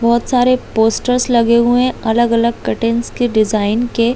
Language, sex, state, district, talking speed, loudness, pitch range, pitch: Hindi, female, Chhattisgarh, Bastar, 160 wpm, -14 LUFS, 230-245 Hz, 235 Hz